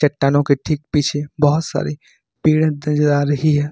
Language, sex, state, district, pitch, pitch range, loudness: Hindi, male, Uttar Pradesh, Lucknow, 145 Hz, 145-155 Hz, -18 LUFS